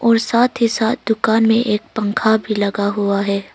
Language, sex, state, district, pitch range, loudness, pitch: Hindi, female, Arunachal Pradesh, Longding, 205-230 Hz, -17 LUFS, 220 Hz